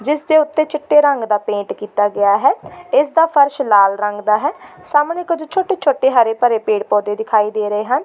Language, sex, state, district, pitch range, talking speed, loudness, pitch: Punjabi, female, Delhi, New Delhi, 210-300 Hz, 200 wpm, -16 LUFS, 265 Hz